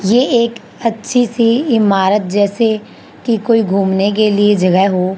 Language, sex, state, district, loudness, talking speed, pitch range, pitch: Hindi, female, Haryana, Charkhi Dadri, -13 LUFS, 150 wpm, 195-230 Hz, 215 Hz